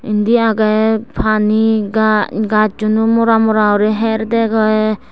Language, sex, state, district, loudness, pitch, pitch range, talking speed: Chakma, female, Tripura, West Tripura, -14 LUFS, 220 Hz, 215-220 Hz, 115 wpm